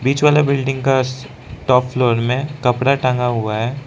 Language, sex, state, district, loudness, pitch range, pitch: Hindi, male, Arunachal Pradesh, Lower Dibang Valley, -17 LUFS, 125-135 Hz, 130 Hz